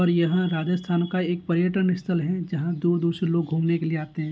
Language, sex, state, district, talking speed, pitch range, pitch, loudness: Hindi, male, Rajasthan, Nagaur, 220 wpm, 170-180 Hz, 175 Hz, -24 LUFS